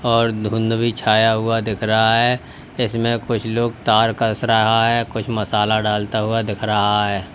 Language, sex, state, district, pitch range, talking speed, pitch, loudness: Hindi, male, Uttar Pradesh, Lalitpur, 110-115 Hz, 180 wpm, 110 Hz, -18 LUFS